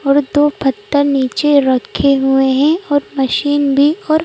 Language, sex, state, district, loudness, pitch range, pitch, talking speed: Hindi, female, Madhya Pradesh, Bhopal, -13 LUFS, 270-295 Hz, 285 Hz, 155 wpm